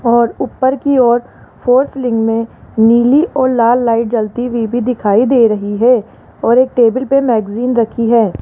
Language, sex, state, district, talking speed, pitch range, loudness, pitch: Hindi, female, Rajasthan, Jaipur, 180 wpm, 230-250 Hz, -13 LUFS, 240 Hz